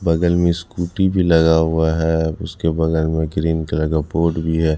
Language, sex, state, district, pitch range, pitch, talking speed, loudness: Hindi, male, Punjab, Kapurthala, 80-85 Hz, 80 Hz, 200 wpm, -18 LUFS